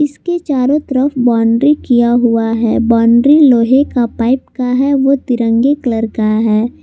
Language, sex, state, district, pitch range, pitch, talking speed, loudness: Hindi, female, Jharkhand, Palamu, 230-275 Hz, 245 Hz, 160 wpm, -12 LUFS